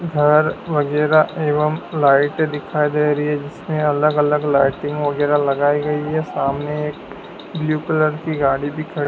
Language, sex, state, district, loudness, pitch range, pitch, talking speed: Hindi, male, Madhya Pradesh, Dhar, -18 LUFS, 145-155 Hz, 150 Hz, 160 wpm